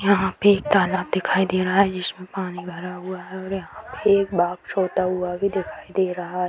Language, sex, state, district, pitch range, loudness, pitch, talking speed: Hindi, female, Bihar, Jamui, 180-195 Hz, -22 LUFS, 185 Hz, 230 wpm